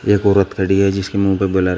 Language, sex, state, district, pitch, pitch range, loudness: Hindi, male, Uttar Pradesh, Shamli, 100 Hz, 95-100 Hz, -16 LUFS